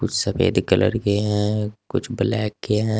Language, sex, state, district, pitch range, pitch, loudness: Hindi, male, Uttar Pradesh, Saharanpur, 100-110 Hz, 105 Hz, -21 LUFS